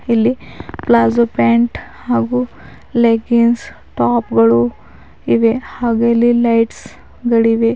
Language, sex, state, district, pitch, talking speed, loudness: Kannada, female, Karnataka, Bidar, 220 Hz, 95 wpm, -14 LUFS